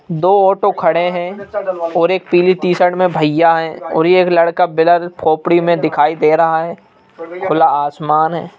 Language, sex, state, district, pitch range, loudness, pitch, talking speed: Hindi, male, Madhya Pradesh, Bhopal, 160-180 Hz, -14 LUFS, 170 Hz, 180 wpm